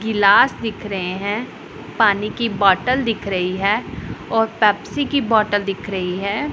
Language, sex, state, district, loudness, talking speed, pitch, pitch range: Hindi, female, Punjab, Pathankot, -19 LUFS, 155 wpm, 210 Hz, 195-225 Hz